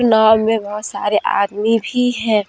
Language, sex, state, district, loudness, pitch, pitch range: Hindi, female, Jharkhand, Deoghar, -16 LUFS, 220 Hz, 210-230 Hz